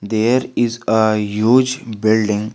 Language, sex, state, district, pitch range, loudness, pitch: English, male, Jharkhand, Garhwa, 110-120 Hz, -16 LUFS, 110 Hz